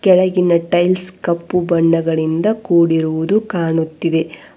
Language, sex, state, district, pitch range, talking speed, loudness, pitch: Kannada, female, Karnataka, Bangalore, 165-185 Hz, 80 wpm, -16 LUFS, 170 Hz